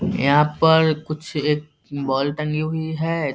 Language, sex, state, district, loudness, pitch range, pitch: Hindi, male, Bihar, Darbhanga, -20 LUFS, 145-160 Hz, 150 Hz